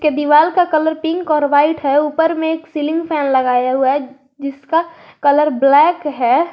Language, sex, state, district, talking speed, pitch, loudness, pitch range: Hindi, female, Jharkhand, Garhwa, 165 wpm, 300 Hz, -15 LUFS, 275-320 Hz